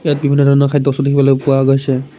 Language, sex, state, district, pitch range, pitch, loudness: Assamese, male, Assam, Kamrup Metropolitan, 135-140 Hz, 140 Hz, -13 LUFS